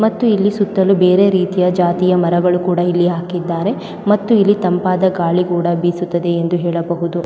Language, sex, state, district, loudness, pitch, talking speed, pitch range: Kannada, female, Karnataka, Mysore, -15 LUFS, 180 Hz, 155 wpm, 175-195 Hz